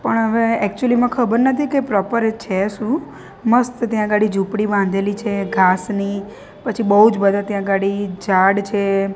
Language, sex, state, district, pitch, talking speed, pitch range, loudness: Gujarati, female, Gujarat, Gandhinagar, 205 Hz, 165 wpm, 200-230 Hz, -18 LUFS